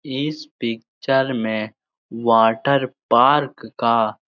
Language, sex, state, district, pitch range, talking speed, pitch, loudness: Hindi, male, Bihar, Jahanabad, 115-140 Hz, 100 wpm, 120 Hz, -19 LUFS